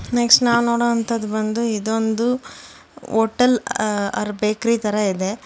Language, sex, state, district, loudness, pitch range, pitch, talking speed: Kannada, female, Karnataka, Bangalore, -19 LUFS, 215-235 Hz, 225 Hz, 110 wpm